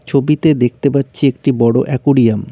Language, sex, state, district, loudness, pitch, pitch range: Bengali, male, West Bengal, Cooch Behar, -14 LUFS, 135 Hz, 125-140 Hz